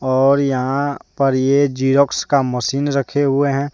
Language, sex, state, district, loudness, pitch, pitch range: Hindi, male, Jharkhand, Deoghar, -17 LUFS, 140 Hz, 130-140 Hz